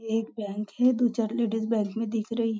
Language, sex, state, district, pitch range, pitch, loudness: Hindi, female, Maharashtra, Nagpur, 220-230 Hz, 225 Hz, -27 LUFS